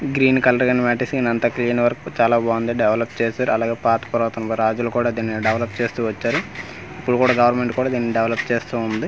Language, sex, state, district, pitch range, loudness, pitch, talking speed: Telugu, male, Andhra Pradesh, Manyam, 115-120 Hz, -20 LUFS, 120 Hz, 185 wpm